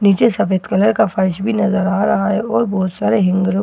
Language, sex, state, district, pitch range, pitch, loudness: Hindi, female, Bihar, Katihar, 185-210 Hz, 195 Hz, -16 LUFS